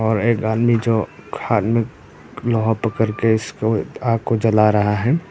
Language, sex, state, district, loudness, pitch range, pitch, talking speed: Hindi, male, Arunachal Pradesh, Papum Pare, -19 LUFS, 110-115 Hz, 110 Hz, 170 wpm